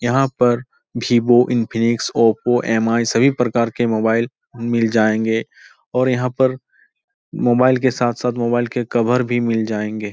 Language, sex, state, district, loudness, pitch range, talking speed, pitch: Hindi, male, Uttar Pradesh, Etah, -18 LUFS, 115-125 Hz, 140 wpm, 120 Hz